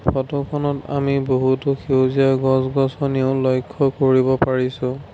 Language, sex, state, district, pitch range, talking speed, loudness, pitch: Assamese, male, Assam, Sonitpur, 130-140 Hz, 95 wpm, -19 LUFS, 135 Hz